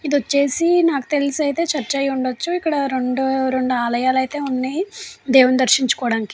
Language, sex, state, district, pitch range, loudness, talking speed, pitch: Telugu, female, Andhra Pradesh, Chittoor, 255-290 Hz, -18 LUFS, 150 wpm, 270 Hz